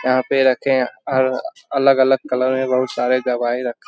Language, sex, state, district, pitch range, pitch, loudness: Hindi, male, Bihar, Jamui, 125-135 Hz, 130 Hz, -18 LUFS